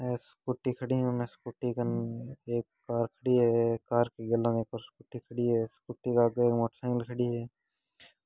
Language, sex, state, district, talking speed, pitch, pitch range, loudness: Hindi, male, Rajasthan, Churu, 175 wpm, 120 Hz, 115-125 Hz, -31 LUFS